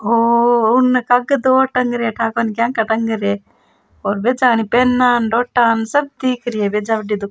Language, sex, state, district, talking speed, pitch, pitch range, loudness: Rajasthani, female, Rajasthan, Churu, 195 wpm, 235 Hz, 225-250 Hz, -16 LUFS